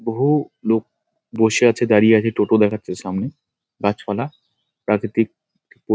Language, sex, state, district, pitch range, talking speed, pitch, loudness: Bengali, male, West Bengal, Dakshin Dinajpur, 105-115 Hz, 120 wpm, 110 Hz, -19 LUFS